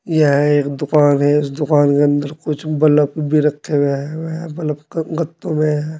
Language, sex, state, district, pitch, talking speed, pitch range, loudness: Hindi, male, Uttar Pradesh, Saharanpur, 150 Hz, 190 wpm, 145-155 Hz, -17 LUFS